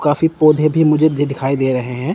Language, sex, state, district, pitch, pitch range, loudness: Hindi, male, Chandigarh, Chandigarh, 150 Hz, 135-155 Hz, -15 LUFS